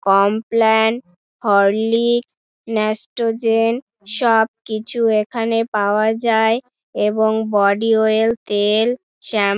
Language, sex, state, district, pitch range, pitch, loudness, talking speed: Bengali, female, West Bengal, Dakshin Dinajpur, 210-230 Hz, 220 Hz, -17 LUFS, 90 wpm